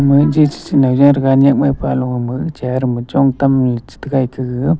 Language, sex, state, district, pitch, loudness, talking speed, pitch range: Wancho, male, Arunachal Pradesh, Longding, 135 Hz, -14 LUFS, 185 wpm, 130-140 Hz